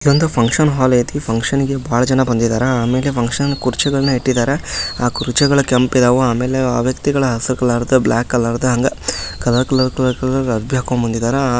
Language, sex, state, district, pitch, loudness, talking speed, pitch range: Kannada, male, Karnataka, Dharwad, 130 Hz, -16 LUFS, 170 wpm, 120-135 Hz